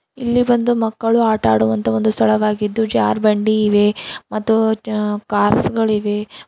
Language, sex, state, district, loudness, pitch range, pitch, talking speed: Kannada, female, Karnataka, Bidar, -17 LUFS, 205-225 Hz, 215 Hz, 110 wpm